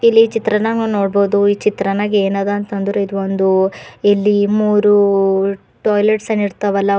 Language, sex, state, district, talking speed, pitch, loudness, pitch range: Kannada, female, Karnataka, Bidar, 120 wpm, 205 Hz, -15 LUFS, 195-210 Hz